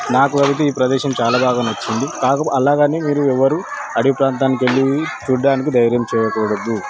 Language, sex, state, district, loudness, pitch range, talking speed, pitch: Telugu, male, Telangana, Nalgonda, -16 LUFS, 120-140 Hz, 150 wpm, 135 Hz